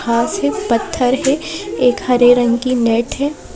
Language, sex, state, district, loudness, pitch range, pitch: Hindi, female, Madhya Pradesh, Bhopal, -15 LUFS, 235-255 Hz, 245 Hz